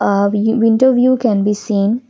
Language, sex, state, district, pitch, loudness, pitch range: English, female, Assam, Kamrup Metropolitan, 220 Hz, -14 LUFS, 205-245 Hz